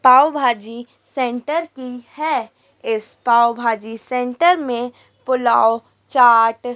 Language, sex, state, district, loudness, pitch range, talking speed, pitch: Hindi, female, Madhya Pradesh, Dhar, -17 LUFS, 235-260 Hz, 105 wpm, 245 Hz